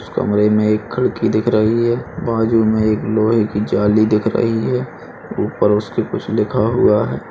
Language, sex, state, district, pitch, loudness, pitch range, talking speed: Hindi, male, Uttar Pradesh, Budaun, 110 Hz, -16 LUFS, 105-115 Hz, 190 wpm